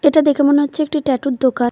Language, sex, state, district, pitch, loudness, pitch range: Bengali, female, West Bengal, Cooch Behar, 285 Hz, -16 LUFS, 265-300 Hz